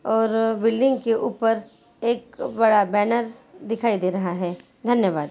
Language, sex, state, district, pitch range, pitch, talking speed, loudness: Hindi, female, Bihar, Jahanabad, 205-235 Hz, 225 Hz, 135 wpm, -22 LUFS